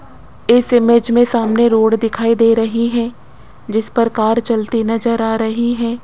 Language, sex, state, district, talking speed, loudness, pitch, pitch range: Hindi, female, Rajasthan, Jaipur, 170 wpm, -15 LUFS, 230 Hz, 225-235 Hz